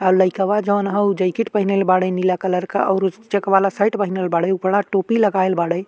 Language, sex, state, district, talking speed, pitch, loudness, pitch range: Bhojpuri, male, Uttar Pradesh, Deoria, 215 wpm, 195 Hz, -18 LUFS, 185-200 Hz